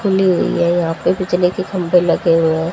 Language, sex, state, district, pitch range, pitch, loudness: Hindi, female, Haryana, Rohtak, 170-185 Hz, 175 Hz, -15 LUFS